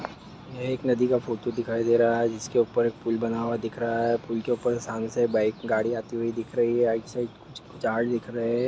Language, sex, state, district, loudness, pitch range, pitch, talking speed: Hindi, male, Jharkhand, Jamtara, -26 LUFS, 115-120 Hz, 115 Hz, 250 wpm